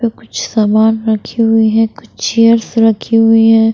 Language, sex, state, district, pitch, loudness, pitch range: Hindi, female, Bihar, Patna, 225 Hz, -12 LUFS, 220-225 Hz